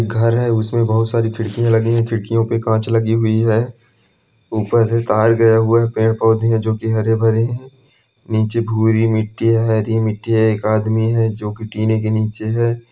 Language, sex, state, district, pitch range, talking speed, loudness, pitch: Hindi, male, West Bengal, Malda, 110-115 Hz, 200 wpm, -16 LUFS, 115 Hz